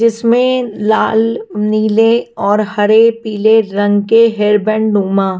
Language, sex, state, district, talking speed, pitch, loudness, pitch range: Hindi, female, Punjab, Kapurthala, 120 wpm, 215 Hz, -12 LUFS, 210-230 Hz